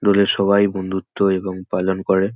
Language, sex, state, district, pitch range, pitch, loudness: Bengali, male, West Bengal, North 24 Parganas, 95-100 Hz, 95 Hz, -19 LUFS